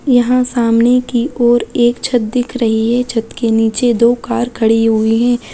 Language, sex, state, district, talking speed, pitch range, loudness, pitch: Bajjika, female, Bihar, Vaishali, 185 wpm, 230-245 Hz, -13 LUFS, 240 Hz